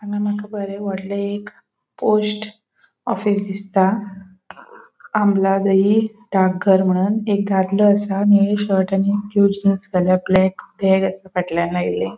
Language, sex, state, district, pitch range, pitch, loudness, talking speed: Konkani, female, Goa, North and South Goa, 190-205 Hz, 200 Hz, -18 LUFS, 115 wpm